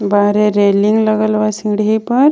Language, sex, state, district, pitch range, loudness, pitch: Bhojpuri, female, Jharkhand, Palamu, 205-215 Hz, -13 LUFS, 215 Hz